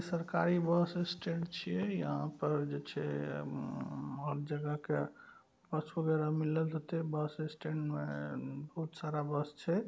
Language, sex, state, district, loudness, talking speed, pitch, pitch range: Maithili, male, Bihar, Saharsa, -37 LUFS, 140 wpm, 150 Hz, 145-165 Hz